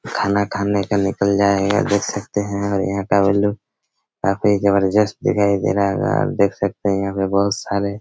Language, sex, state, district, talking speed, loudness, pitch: Hindi, male, Chhattisgarh, Raigarh, 195 wpm, -19 LUFS, 100 Hz